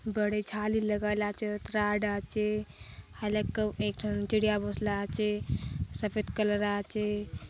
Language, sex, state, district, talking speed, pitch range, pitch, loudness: Halbi, female, Chhattisgarh, Bastar, 120 wpm, 210-215 Hz, 210 Hz, -32 LUFS